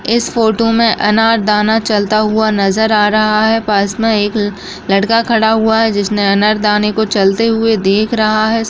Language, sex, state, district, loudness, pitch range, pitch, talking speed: Hindi, female, Bihar, Bhagalpur, -12 LUFS, 210-225 Hz, 215 Hz, 170 wpm